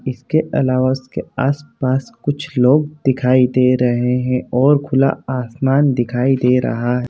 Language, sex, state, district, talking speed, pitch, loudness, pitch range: Hindi, male, Chhattisgarh, Bilaspur, 145 wpm, 130 Hz, -16 LUFS, 125-135 Hz